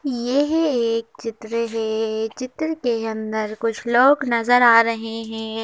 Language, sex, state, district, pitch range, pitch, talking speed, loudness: Hindi, female, Madhya Pradesh, Bhopal, 225-250 Hz, 230 Hz, 140 wpm, -20 LUFS